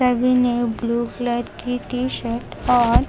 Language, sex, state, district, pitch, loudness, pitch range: Hindi, female, Chhattisgarh, Raipur, 245 Hz, -21 LUFS, 235-250 Hz